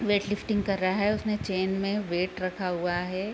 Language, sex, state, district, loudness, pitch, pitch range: Hindi, female, Bihar, East Champaran, -28 LUFS, 195 Hz, 185-205 Hz